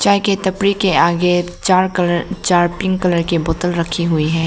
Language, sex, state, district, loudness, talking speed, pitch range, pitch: Hindi, female, Arunachal Pradesh, Lower Dibang Valley, -16 LUFS, 200 wpm, 170-190 Hz, 175 Hz